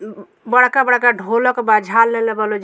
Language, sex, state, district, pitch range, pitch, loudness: Bhojpuri, female, Bihar, Muzaffarpur, 215-245 Hz, 230 Hz, -14 LUFS